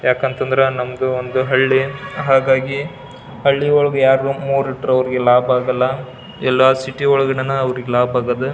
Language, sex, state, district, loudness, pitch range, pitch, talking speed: Kannada, male, Karnataka, Belgaum, -16 LUFS, 130-135 Hz, 130 Hz, 125 wpm